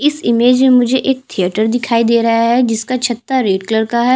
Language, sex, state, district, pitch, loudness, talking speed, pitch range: Hindi, female, Chhattisgarh, Jashpur, 240 Hz, -13 LUFS, 230 wpm, 230-255 Hz